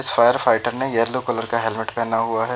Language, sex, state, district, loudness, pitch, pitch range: Hindi, male, Uttar Pradesh, Jyotiba Phule Nagar, -21 LUFS, 115 Hz, 115-125 Hz